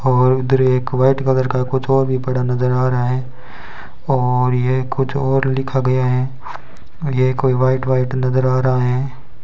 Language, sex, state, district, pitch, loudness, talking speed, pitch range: Hindi, male, Rajasthan, Bikaner, 130 Hz, -17 LUFS, 185 wpm, 125-130 Hz